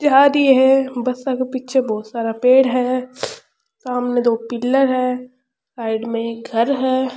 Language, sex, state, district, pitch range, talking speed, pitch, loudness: Rajasthani, female, Rajasthan, Churu, 240-265 Hz, 150 wpm, 255 Hz, -18 LUFS